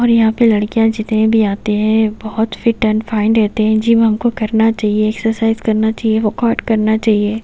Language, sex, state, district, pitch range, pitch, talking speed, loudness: Hindi, female, Haryana, Jhajjar, 215-225 Hz, 220 Hz, 195 wpm, -14 LUFS